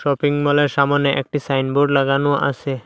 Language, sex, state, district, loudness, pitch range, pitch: Bengali, male, Assam, Hailakandi, -18 LUFS, 135-145 Hz, 140 Hz